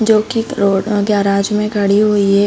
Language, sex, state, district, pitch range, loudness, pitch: Hindi, female, Bihar, Samastipur, 200-215 Hz, -14 LUFS, 205 Hz